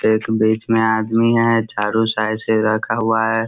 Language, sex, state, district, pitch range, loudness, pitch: Hindi, male, Bihar, Sitamarhi, 110-115 Hz, -17 LUFS, 110 Hz